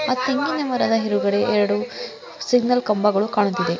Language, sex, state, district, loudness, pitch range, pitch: Kannada, female, Karnataka, Mysore, -20 LUFS, 165-250 Hz, 210 Hz